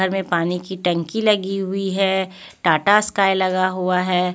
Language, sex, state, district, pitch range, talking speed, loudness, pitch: Hindi, female, Punjab, Pathankot, 180-195 Hz, 165 wpm, -19 LUFS, 190 Hz